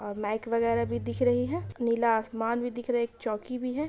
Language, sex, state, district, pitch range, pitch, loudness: Hindi, male, Bihar, Muzaffarpur, 220-245 Hz, 230 Hz, -29 LUFS